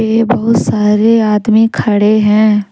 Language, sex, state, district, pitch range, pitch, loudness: Hindi, female, Jharkhand, Deoghar, 210-225 Hz, 215 Hz, -11 LUFS